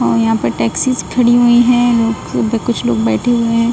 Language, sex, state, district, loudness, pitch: Hindi, female, Bihar, Saran, -13 LUFS, 230 Hz